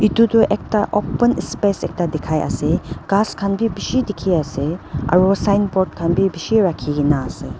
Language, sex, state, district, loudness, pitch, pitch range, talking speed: Nagamese, female, Nagaland, Dimapur, -18 LUFS, 190 Hz, 155-205 Hz, 165 wpm